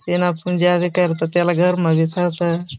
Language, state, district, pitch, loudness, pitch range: Bhili, Maharashtra, Dhule, 175 Hz, -18 LUFS, 170-180 Hz